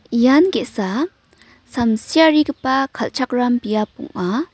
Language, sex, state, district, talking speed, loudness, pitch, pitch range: Garo, female, Meghalaya, North Garo Hills, 80 wpm, -18 LUFS, 255 Hz, 230-295 Hz